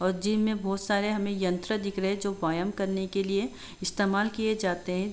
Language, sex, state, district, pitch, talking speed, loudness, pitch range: Hindi, female, Uttar Pradesh, Jalaun, 195 Hz, 235 wpm, -29 LUFS, 190-205 Hz